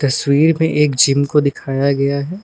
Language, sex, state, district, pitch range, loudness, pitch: Hindi, male, Uttar Pradesh, Lucknow, 140-150 Hz, -15 LUFS, 140 Hz